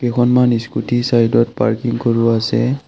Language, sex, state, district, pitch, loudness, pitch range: Assamese, male, Assam, Kamrup Metropolitan, 120 Hz, -15 LUFS, 115-120 Hz